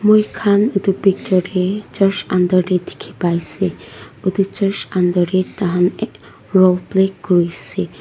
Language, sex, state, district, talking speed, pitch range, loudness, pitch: Nagamese, female, Nagaland, Dimapur, 150 wpm, 180-195 Hz, -17 LUFS, 185 Hz